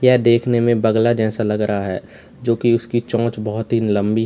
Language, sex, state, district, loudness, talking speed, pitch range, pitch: Hindi, male, Uttar Pradesh, Lalitpur, -18 LUFS, 225 wpm, 110-120 Hz, 115 Hz